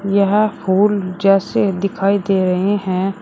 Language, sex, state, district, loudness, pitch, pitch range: Hindi, female, Uttar Pradesh, Shamli, -16 LUFS, 195 Hz, 190-200 Hz